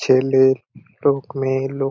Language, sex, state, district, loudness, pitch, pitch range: Bengali, male, West Bengal, Purulia, -19 LUFS, 135 Hz, 130-135 Hz